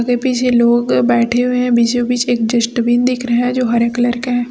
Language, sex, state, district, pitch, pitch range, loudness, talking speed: Hindi, female, Chhattisgarh, Raipur, 245 Hz, 235-245 Hz, -14 LUFS, 240 wpm